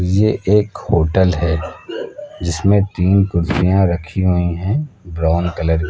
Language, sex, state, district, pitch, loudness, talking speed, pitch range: Hindi, male, Uttar Pradesh, Lucknow, 95 Hz, -17 LUFS, 130 wpm, 85-105 Hz